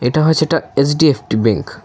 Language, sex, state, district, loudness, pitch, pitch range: Bengali, male, Tripura, West Tripura, -15 LUFS, 145 Hz, 120-155 Hz